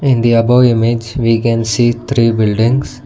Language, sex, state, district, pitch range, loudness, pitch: English, male, Karnataka, Bangalore, 115-125 Hz, -12 LUFS, 115 Hz